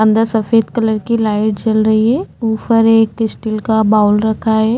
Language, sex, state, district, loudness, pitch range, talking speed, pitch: Hindi, female, Chhattisgarh, Jashpur, -14 LUFS, 215-225 Hz, 190 wpm, 220 Hz